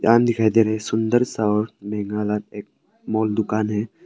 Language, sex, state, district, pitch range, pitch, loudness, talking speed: Hindi, male, Arunachal Pradesh, Papum Pare, 105-110 Hz, 110 Hz, -21 LUFS, 175 wpm